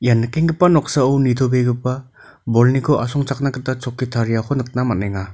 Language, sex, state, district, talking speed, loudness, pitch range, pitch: Garo, male, Meghalaya, North Garo Hills, 125 wpm, -18 LUFS, 120-140 Hz, 125 Hz